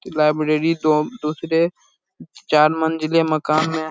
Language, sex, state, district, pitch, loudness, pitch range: Hindi, male, Bihar, Purnia, 155 Hz, -19 LUFS, 155-160 Hz